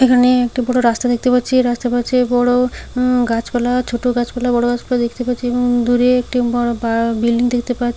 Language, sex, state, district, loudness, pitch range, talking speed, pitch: Bengali, female, West Bengal, Paschim Medinipur, -16 LUFS, 240-250 Hz, 210 wpm, 245 Hz